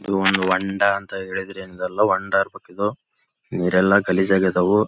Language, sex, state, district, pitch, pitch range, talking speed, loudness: Kannada, male, Karnataka, Belgaum, 95 Hz, 95-100 Hz, 145 wpm, -20 LUFS